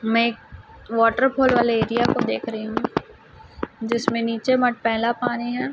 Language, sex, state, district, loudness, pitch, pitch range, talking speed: Hindi, female, Chhattisgarh, Raipur, -22 LUFS, 235 Hz, 230-245 Hz, 155 wpm